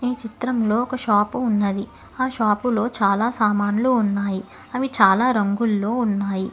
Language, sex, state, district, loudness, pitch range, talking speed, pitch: Telugu, female, Telangana, Hyderabad, -21 LUFS, 200-245 Hz, 120 wpm, 220 Hz